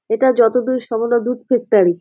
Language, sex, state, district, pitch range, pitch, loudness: Bengali, female, West Bengal, Jalpaiguri, 225-250 Hz, 240 Hz, -16 LUFS